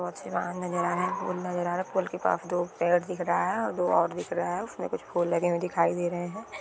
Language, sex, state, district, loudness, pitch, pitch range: Hindi, female, Bihar, East Champaran, -29 LUFS, 175 Hz, 175-180 Hz